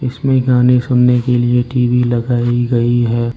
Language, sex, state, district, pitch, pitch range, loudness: Hindi, male, Arunachal Pradesh, Lower Dibang Valley, 125 Hz, 120-125 Hz, -13 LUFS